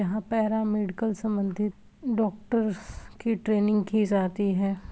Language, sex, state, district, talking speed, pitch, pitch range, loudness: Hindi, female, Bihar, Vaishali, 120 wpm, 210 Hz, 200-220 Hz, -27 LUFS